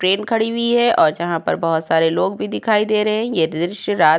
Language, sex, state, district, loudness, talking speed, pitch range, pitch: Hindi, female, Uttar Pradesh, Jyotiba Phule Nagar, -18 LUFS, 270 wpm, 165-220 Hz, 195 Hz